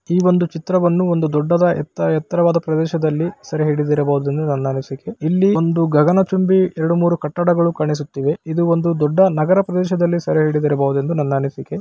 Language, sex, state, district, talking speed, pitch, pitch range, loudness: Kannada, male, Karnataka, Gulbarga, 145 wpm, 165 Hz, 150-175 Hz, -17 LUFS